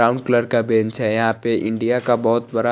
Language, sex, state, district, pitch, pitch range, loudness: Hindi, male, Chandigarh, Chandigarh, 115 Hz, 115-120 Hz, -19 LUFS